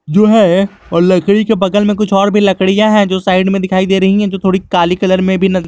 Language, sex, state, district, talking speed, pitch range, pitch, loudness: Hindi, male, Jharkhand, Garhwa, 265 wpm, 185-205 Hz, 195 Hz, -11 LUFS